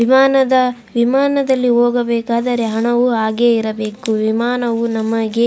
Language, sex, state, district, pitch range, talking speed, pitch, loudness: Kannada, female, Karnataka, Raichur, 225-250 Hz, 100 wpm, 235 Hz, -15 LUFS